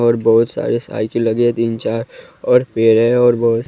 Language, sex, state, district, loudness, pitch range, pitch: Hindi, male, Bihar, West Champaran, -15 LUFS, 115-120 Hz, 115 Hz